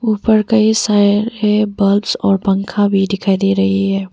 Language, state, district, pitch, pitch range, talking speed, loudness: Hindi, Arunachal Pradesh, Papum Pare, 205 Hz, 195-215 Hz, 160 wpm, -14 LUFS